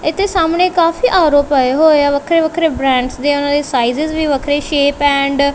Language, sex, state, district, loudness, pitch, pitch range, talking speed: Punjabi, female, Punjab, Kapurthala, -13 LUFS, 290 Hz, 280-325 Hz, 205 wpm